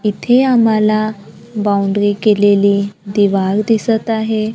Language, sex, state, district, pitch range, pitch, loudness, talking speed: Marathi, female, Maharashtra, Gondia, 200-220 Hz, 210 Hz, -14 LUFS, 90 wpm